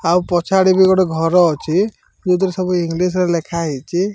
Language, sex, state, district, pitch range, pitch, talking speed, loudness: Odia, male, Odisha, Malkangiri, 170-185 Hz, 180 Hz, 160 wpm, -16 LUFS